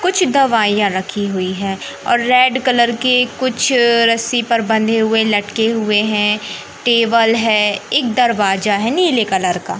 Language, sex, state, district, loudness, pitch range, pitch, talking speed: Hindi, male, Madhya Pradesh, Katni, -15 LUFS, 210-245 Hz, 225 Hz, 155 wpm